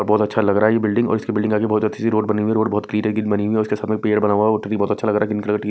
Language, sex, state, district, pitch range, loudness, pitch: Hindi, male, Punjab, Kapurthala, 105-110 Hz, -19 LUFS, 105 Hz